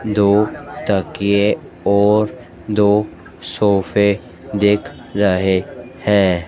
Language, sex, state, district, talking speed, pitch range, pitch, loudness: Hindi, female, Madhya Pradesh, Dhar, 75 wpm, 95-105 Hz, 100 Hz, -17 LUFS